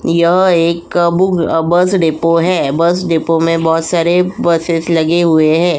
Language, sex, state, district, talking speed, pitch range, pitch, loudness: Hindi, female, Uttar Pradesh, Jyotiba Phule Nagar, 165 wpm, 165-175 Hz, 170 Hz, -12 LUFS